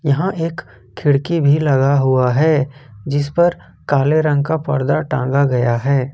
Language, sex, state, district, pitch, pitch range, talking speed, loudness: Hindi, male, Jharkhand, Ranchi, 140 Hz, 135-155 Hz, 165 wpm, -16 LUFS